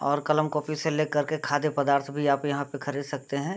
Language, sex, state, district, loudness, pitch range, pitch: Hindi, male, Bihar, Gopalganj, -27 LUFS, 140-155 Hz, 145 Hz